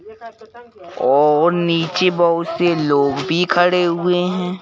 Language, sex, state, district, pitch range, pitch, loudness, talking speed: Hindi, male, Madhya Pradesh, Bhopal, 170-185 Hz, 175 Hz, -16 LUFS, 115 wpm